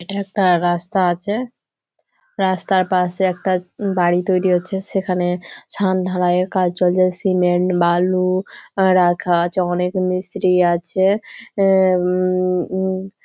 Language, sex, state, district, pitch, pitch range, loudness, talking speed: Bengali, female, West Bengal, Malda, 185 Hz, 180-190 Hz, -18 LUFS, 110 wpm